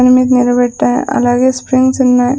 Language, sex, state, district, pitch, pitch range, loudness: Telugu, female, Andhra Pradesh, Sri Satya Sai, 255 Hz, 245-260 Hz, -11 LUFS